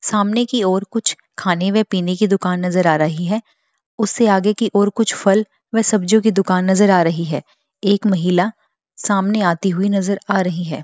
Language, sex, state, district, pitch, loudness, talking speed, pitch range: Hindi, female, Bihar, Bhagalpur, 195 Hz, -17 LUFS, 205 wpm, 180-215 Hz